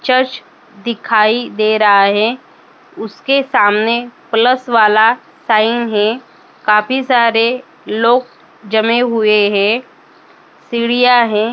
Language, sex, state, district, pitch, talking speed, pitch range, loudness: Marathi, female, Maharashtra, Sindhudurg, 230 Hz, 100 wpm, 215-245 Hz, -13 LUFS